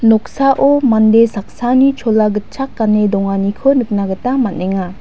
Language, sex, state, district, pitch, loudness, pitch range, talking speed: Garo, female, Meghalaya, West Garo Hills, 220 Hz, -14 LUFS, 200-260 Hz, 120 wpm